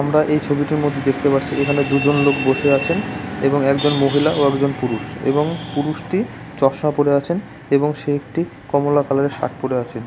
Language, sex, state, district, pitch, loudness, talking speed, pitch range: Bengali, male, West Bengal, Malda, 145 Hz, -19 LUFS, 190 wpm, 140-150 Hz